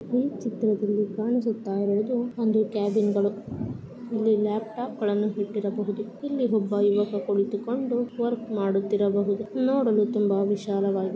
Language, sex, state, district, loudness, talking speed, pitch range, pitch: Kannada, female, Karnataka, Mysore, -26 LUFS, 100 wpm, 205-235 Hz, 210 Hz